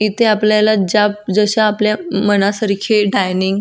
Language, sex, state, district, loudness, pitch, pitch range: Marathi, female, Maharashtra, Solapur, -14 LUFS, 210 Hz, 200-215 Hz